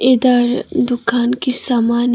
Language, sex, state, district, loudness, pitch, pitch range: Hindi, female, Tripura, Dhalai, -15 LUFS, 245 Hz, 240-255 Hz